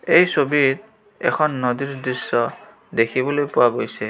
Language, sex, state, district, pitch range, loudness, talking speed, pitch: Assamese, male, Assam, Kamrup Metropolitan, 130-155 Hz, -20 LUFS, 115 wpm, 140 Hz